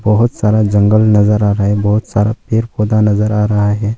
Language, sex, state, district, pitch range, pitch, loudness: Hindi, male, Arunachal Pradesh, Longding, 105-110 Hz, 105 Hz, -13 LUFS